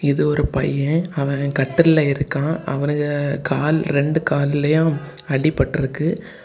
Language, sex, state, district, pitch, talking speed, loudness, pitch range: Tamil, male, Tamil Nadu, Kanyakumari, 145 Hz, 110 wpm, -19 LUFS, 140-160 Hz